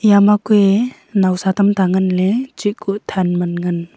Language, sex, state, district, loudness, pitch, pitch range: Wancho, female, Arunachal Pradesh, Longding, -16 LUFS, 200 Hz, 185-210 Hz